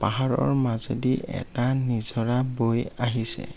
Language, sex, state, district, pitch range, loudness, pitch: Assamese, male, Assam, Kamrup Metropolitan, 115-130 Hz, -23 LUFS, 120 Hz